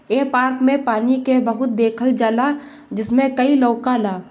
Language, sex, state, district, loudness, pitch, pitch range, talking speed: Bhojpuri, female, Bihar, Gopalganj, -17 LUFS, 255 Hz, 230-265 Hz, 165 wpm